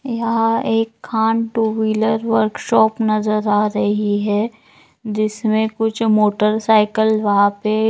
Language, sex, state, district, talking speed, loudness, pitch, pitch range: Hindi, female, Maharashtra, Nagpur, 120 wpm, -17 LUFS, 220 Hz, 215-225 Hz